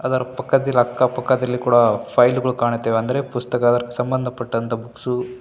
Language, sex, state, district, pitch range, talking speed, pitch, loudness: Kannada, male, Karnataka, Bellary, 120-130 Hz, 135 wpm, 125 Hz, -19 LUFS